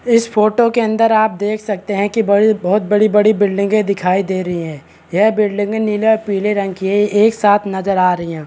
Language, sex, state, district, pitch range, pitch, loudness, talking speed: Hindi, male, Chhattisgarh, Balrampur, 195-215 Hz, 205 Hz, -15 LUFS, 235 wpm